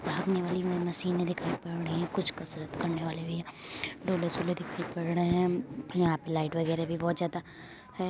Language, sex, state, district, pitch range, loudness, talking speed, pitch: Hindi, female, Uttar Pradesh, Jyotiba Phule Nagar, 165-180 Hz, -32 LUFS, 190 wpm, 170 Hz